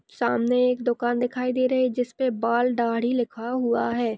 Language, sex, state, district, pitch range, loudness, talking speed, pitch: Hindi, female, Maharashtra, Solapur, 235-250 Hz, -24 LUFS, 185 wpm, 245 Hz